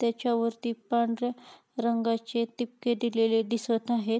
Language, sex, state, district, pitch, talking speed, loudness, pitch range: Marathi, female, Maharashtra, Pune, 235 Hz, 100 wpm, -29 LUFS, 230-240 Hz